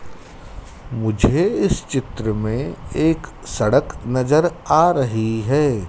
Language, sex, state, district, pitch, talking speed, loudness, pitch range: Hindi, male, Madhya Pradesh, Dhar, 130 Hz, 100 wpm, -19 LUFS, 110-150 Hz